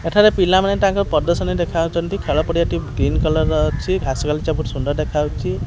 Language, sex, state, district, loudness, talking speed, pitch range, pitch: Odia, male, Odisha, Khordha, -18 LUFS, 210 wpm, 150-185 Hz, 165 Hz